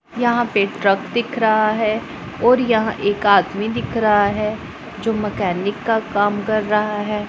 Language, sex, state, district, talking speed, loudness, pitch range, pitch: Hindi, male, Punjab, Pathankot, 165 wpm, -18 LUFS, 205-225 Hz, 215 Hz